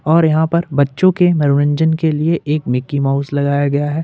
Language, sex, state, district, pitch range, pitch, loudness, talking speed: Hindi, male, Jharkhand, Ranchi, 140-160 Hz, 150 Hz, -15 LUFS, 205 wpm